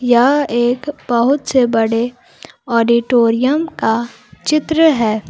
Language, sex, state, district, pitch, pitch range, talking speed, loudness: Hindi, female, Jharkhand, Palamu, 245 Hz, 235-280 Hz, 100 wpm, -15 LUFS